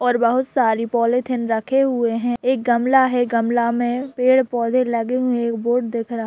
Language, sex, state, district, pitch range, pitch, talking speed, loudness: Hindi, female, Bihar, Araria, 235-255 Hz, 240 Hz, 190 wpm, -19 LUFS